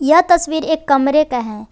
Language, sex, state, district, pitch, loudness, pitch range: Hindi, female, Jharkhand, Garhwa, 305 Hz, -15 LUFS, 270-315 Hz